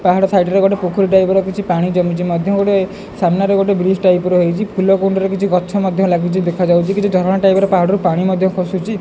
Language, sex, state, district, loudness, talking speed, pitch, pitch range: Odia, male, Odisha, Khordha, -14 LUFS, 200 wpm, 190 Hz, 180-195 Hz